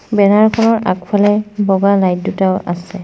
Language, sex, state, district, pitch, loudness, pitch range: Assamese, female, Assam, Sonitpur, 200 Hz, -14 LUFS, 185-210 Hz